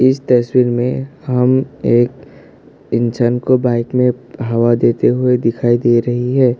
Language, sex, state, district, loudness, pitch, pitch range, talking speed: Hindi, male, Assam, Sonitpur, -15 LUFS, 125 Hz, 120-130 Hz, 145 wpm